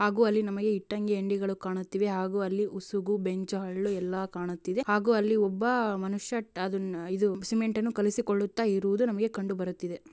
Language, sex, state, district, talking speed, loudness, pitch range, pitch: Kannada, female, Karnataka, Raichur, 155 wpm, -30 LUFS, 190-215 Hz, 200 Hz